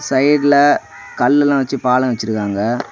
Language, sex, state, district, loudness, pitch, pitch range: Tamil, male, Tamil Nadu, Kanyakumari, -15 LUFS, 135 Hz, 125-145 Hz